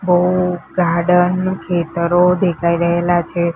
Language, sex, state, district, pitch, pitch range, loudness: Gujarati, female, Gujarat, Gandhinagar, 175 Hz, 170-180 Hz, -16 LUFS